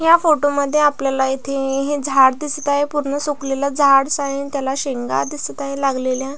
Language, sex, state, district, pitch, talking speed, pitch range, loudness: Marathi, female, Maharashtra, Pune, 280 Hz, 180 wpm, 270-290 Hz, -18 LUFS